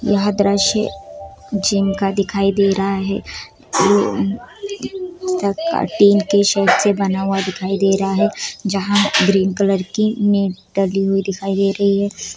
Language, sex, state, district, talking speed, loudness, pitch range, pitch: Hindi, female, Bihar, East Champaran, 140 wpm, -17 LUFS, 195-205 Hz, 200 Hz